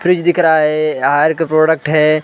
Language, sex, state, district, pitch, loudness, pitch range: Hindi, male, Chhattisgarh, Balrampur, 155 Hz, -13 LUFS, 155-165 Hz